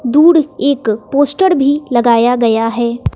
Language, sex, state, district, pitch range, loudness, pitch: Hindi, female, Bihar, West Champaran, 235-290 Hz, -12 LUFS, 265 Hz